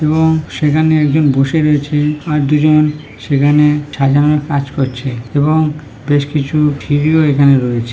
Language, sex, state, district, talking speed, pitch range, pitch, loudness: Bengali, female, West Bengal, Dakshin Dinajpur, 120 wpm, 140-150 Hz, 150 Hz, -13 LUFS